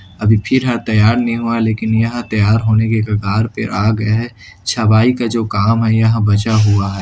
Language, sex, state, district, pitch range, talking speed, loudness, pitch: Hindi, male, Chhattisgarh, Kabirdham, 105-115 Hz, 215 wpm, -14 LUFS, 110 Hz